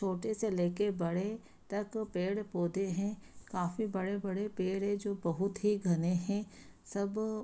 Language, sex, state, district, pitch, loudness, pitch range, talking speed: Hindi, female, Bihar, Saharsa, 200 Hz, -35 LUFS, 185-210 Hz, 155 wpm